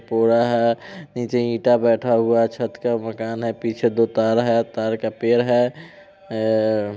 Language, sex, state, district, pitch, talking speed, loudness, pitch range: Hindi, male, Bihar, Vaishali, 115 Hz, 180 wpm, -20 LUFS, 115-120 Hz